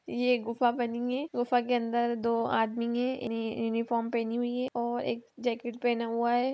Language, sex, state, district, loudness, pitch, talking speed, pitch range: Magahi, female, Bihar, Gaya, -30 LUFS, 235 Hz, 220 wpm, 230-245 Hz